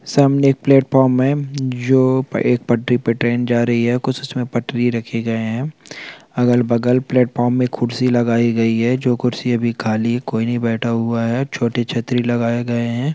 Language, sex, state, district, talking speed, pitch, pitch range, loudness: Hindi, male, Chhattisgarh, Bastar, 190 wpm, 120 Hz, 120-130 Hz, -17 LUFS